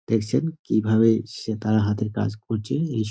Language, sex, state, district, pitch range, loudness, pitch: Bengali, male, West Bengal, Dakshin Dinajpur, 110-115 Hz, -23 LUFS, 110 Hz